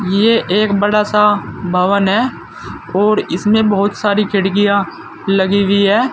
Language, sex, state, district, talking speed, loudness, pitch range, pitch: Hindi, male, Uttar Pradesh, Saharanpur, 135 wpm, -14 LUFS, 195-210 Hz, 205 Hz